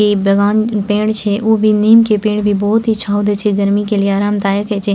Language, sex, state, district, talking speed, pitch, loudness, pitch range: Maithili, female, Bihar, Purnia, 265 wpm, 205 Hz, -13 LUFS, 205-215 Hz